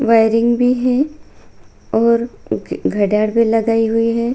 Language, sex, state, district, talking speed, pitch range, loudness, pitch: Hindi, female, Bihar, Bhagalpur, 110 wpm, 225-240 Hz, -16 LUFS, 230 Hz